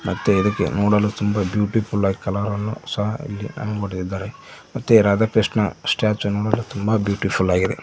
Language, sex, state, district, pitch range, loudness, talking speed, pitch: Kannada, male, Karnataka, Koppal, 100-110 Hz, -21 LUFS, 125 wpm, 105 Hz